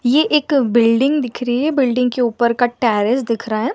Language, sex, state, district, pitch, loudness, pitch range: Hindi, female, Madhya Pradesh, Bhopal, 245 Hz, -16 LUFS, 235-270 Hz